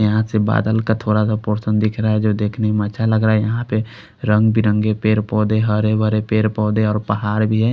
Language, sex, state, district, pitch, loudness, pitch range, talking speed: Hindi, male, Odisha, Khordha, 110 Hz, -18 LUFS, 105-110 Hz, 240 wpm